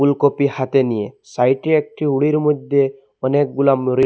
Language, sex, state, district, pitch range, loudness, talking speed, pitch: Bengali, male, Assam, Hailakandi, 130-145 Hz, -18 LUFS, 135 wpm, 140 Hz